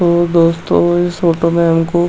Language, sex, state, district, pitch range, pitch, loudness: Hindi, male, Uttarakhand, Tehri Garhwal, 165-175 Hz, 170 Hz, -13 LUFS